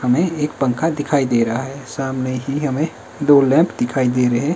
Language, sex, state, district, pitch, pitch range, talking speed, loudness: Hindi, male, Himachal Pradesh, Shimla, 135 Hz, 125-145 Hz, 195 wpm, -18 LUFS